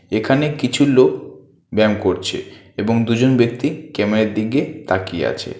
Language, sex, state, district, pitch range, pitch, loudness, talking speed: Bengali, male, West Bengal, Alipurduar, 110-145 Hz, 120 Hz, -18 LUFS, 130 wpm